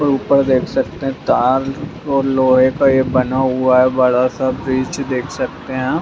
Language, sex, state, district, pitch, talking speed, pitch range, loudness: Magahi, male, Bihar, Gaya, 130 Hz, 200 wpm, 130-135 Hz, -16 LUFS